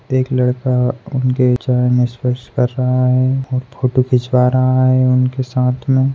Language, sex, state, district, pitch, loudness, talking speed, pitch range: Hindi, male, Bihar, Samastipur, 125 Hz, -15 LUFS, 155 wpm, 125-130 Hz